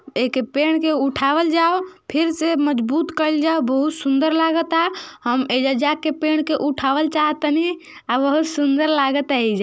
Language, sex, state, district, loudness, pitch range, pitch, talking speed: Bhojpuri, female, Uttar Pradesh, Ghazipur, -19 LUFS, 275-320 Hz, 300 Hz, 160 wpm